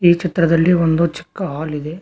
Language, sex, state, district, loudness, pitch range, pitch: Kannada, male, Karnataka, Koppal, -17 LUFS, 160-175 Hz, 170 Hz